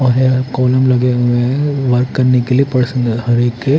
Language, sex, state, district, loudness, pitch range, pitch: Hindi, male, Haryana, Charkhi Dadri, -14 LUFS, 125-130 Hz, 125 Hz